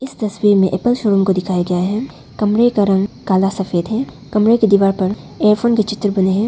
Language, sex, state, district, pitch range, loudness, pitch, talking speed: Hindi, female, Arunachal Pradesh, Papum Pare, 190-220 Hz, -16 LUFS, 205 Hz, 220 wpm